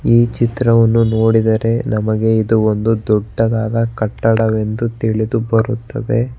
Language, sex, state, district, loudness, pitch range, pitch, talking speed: Kannada, male, Karnataka, Bangalore, -15 LUFS, 110-115 Hz, 115 Hz, 85 wpm